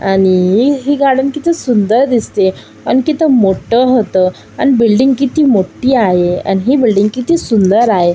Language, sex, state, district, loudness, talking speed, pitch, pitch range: Marathi, female, Maharashtra, Aurangabad, -11 LUFS, 160 wpm, 235 Hz, 195-270 Hz